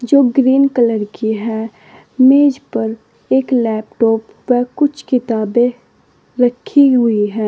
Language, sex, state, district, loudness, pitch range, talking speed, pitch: Hindi, female, Uttar Pradesh, Saharanpur, -14 LUFS, 220-265 Hz, 120 wpm, 245 Hz